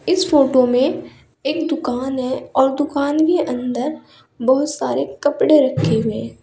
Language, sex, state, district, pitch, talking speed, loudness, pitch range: Hindi, female, Uttar Pradesh, Saharanpur, 270 Hz, 150 wpm, -18 LUFS, 255-300 Hz